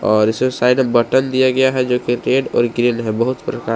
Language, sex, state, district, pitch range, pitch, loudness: Hindi, male, Jharkhand, Palamu, 120-130 Hz, 125 Hz, -16 LUFS